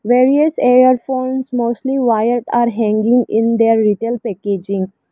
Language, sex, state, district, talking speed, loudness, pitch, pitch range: English, female, Arunachal Pradesh, Lower Dibang Valley, 115 wpm, -15 LUFS, 235 Hz, 220-255 Hz